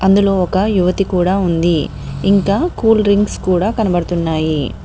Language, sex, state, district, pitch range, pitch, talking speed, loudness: Telugu, female, Telangana, Mahabubabad, 175-200 Hz, 190 Hz, 125 wpm, -15 LUFS